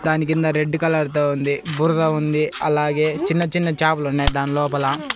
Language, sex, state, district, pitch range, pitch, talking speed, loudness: Telugu, male, Andhra Pradesh, Annamaya, 145-160 Hz, 155 Hz, 165 wpm, -20 LUFS